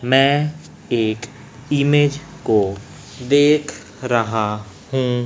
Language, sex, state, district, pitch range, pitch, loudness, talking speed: Hindi, male, Chhattisgarh, Raipur, 110-145 Hz, 130 Hz, -19 LUFS, 80 wpm